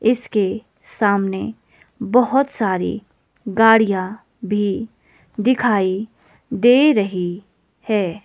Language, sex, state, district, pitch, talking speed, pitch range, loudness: Hindi, female, Himachal Pradesh, Shimla, 215 Hz, 75 wpm, 195-235 Hz, -18 LUFS